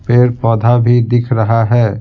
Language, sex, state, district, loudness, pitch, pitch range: Hindi, male, Bihar, Patna, -12 LUFS, 120 Hz, 115-120 Hz